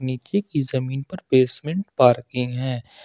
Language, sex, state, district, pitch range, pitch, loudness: Hindi, male, Jharkhand, Ranchi, 125-145 Hz, 130 Hz, -22 LUFS